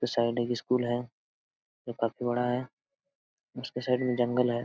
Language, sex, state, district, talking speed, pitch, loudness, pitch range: Hindi, male, Jharkhand, Sahebganj, 180 wpm, 125 Hz, -30 LUFS, 120-125 Hz